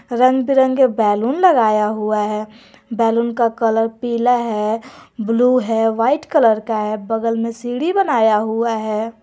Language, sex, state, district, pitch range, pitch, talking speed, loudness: Hindi, female, Jharkhand, Garhwa, 220-245 Hz, 230 Hz, 150 wpm, -17 LUFS